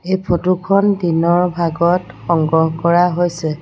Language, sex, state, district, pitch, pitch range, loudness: Assamese, female, Assam, Sonitpur, 175 Hz, 165-180 Hz, -16 LUFS